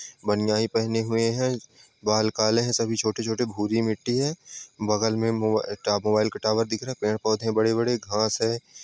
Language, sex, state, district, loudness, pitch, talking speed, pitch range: Hindi, male, Uttar Pradesh, Ghazipur, -25 LUFS, 110 Hz, 190 wpm, 110-115 Hz